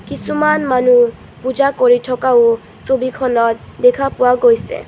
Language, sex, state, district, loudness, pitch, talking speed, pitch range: Assamese, female, Assam, Kamrup Metropolitan, -14 LUFS, 250 Hz, 110 wpm, 240-260 Hz